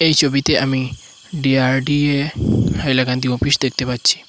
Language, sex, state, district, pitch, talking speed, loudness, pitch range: Bengali, male, Assam, Hailakandi, 135 Hz, 110 wpm, -17 LUFS, 125-145 Hz